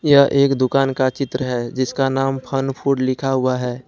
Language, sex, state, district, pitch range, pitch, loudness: Hindi, male, Jharkhand, Ranchi, 130-135 Hz, 135 Hz, -19 LUFS